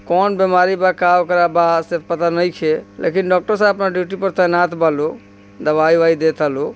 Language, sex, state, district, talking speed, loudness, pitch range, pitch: Bhojpuri, male, Bihar, East Champaran, 205 wpm, -16 LUFS, 160-185 Hz, 175 Hz